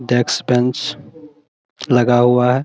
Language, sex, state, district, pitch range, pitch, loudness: Hindi, male, Bihar, Araria, 125-145 Hz, 125 Hz, -16 LUFS